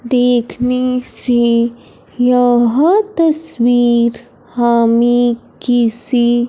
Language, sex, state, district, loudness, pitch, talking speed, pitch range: Hindi, female, Punjab, Fazilka, -13 LUFS, 245 Hz, 55 wpm, 235-250 Hz